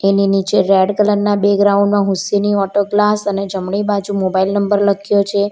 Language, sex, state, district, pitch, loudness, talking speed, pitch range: Gujarati, female, Gujarat, Valsad, 200 Hz, -15 LUFS, 175 wpm, 195-205 Hz